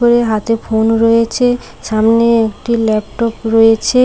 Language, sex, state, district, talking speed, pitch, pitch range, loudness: Bengali, female, West Bengal, Paschim Medinipur, 120 wpm, 230 Hz, 220-235 Hz, -13 LUFS